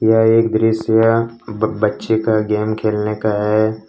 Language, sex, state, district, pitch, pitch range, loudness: Hindi, male, Jharkhand, Ranchi, 110 Hz, 105-110 Hz, -16 LUFS